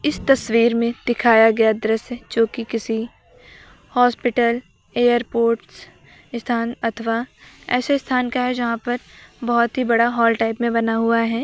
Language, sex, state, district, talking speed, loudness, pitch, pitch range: Hindi, female, Uttar Pradesh, Lucknow, 145 wpm, -19 LUFS, 235 Hz, 230-245 Hz